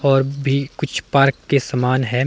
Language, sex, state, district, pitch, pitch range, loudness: Hindi, male, Himachal Pradesh, Shimla, 135 Hz, 130-140 Hz, -18 LUFS